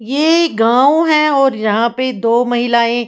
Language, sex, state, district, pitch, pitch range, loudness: Hindi, female, Haryana, Jhajjar, 245 Hz, 235-290 Hz, -13 LUFS